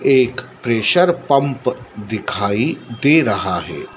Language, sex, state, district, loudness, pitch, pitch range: Hindi, male, Madhya Pradesh, Dhar, -17 LUFS, 125 Hz, 115-140 Hz